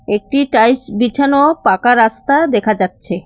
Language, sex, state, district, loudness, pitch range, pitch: Bengali, female, West Bengal, Cooch Behar, -13 LUFS, 210-280 Hz, 235 Hz